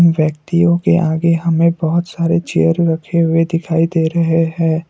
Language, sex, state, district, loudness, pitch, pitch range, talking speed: Hindi, male, Assam, Kamrup Metropolitan, -15 LUFS, 165 Hz, 160-170 Hz, 160 wpm